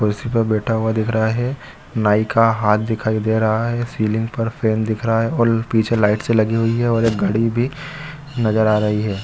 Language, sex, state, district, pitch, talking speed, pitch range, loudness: Hindi, male, Chhattisgarh, Bilaspur, 115 Hz, 225 wpm, 110-115 Hz, -18 LUFS